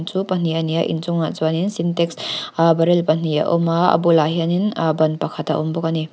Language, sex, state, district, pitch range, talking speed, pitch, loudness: Mizo, female, Mizoram, Aizawl, 160-170 Hz, 235 wpm, 165 Hz, -19 LUFS